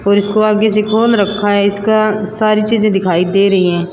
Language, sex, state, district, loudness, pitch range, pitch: Hindi, female, Rajasthan, Churu, -12 LUFS, 200-215 Hz, 210 Hz